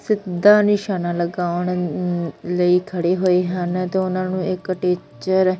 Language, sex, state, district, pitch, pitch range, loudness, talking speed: Punjabi, female, Punjab, Fazilka, 180 Hz, 180-185 Hz, -20 LUFS, 140 wpm